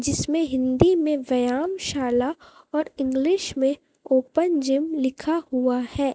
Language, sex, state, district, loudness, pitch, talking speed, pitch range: Hindi, female, Chhattisgarh, Raipur, -23 LUFS, 280 Hz, 125 wpm, 260-320 Hz